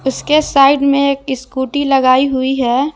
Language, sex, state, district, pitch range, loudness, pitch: Hindi, female, Jharkhand, Garhwa, 260-280 Hz, -13 LUFS, 275 Hz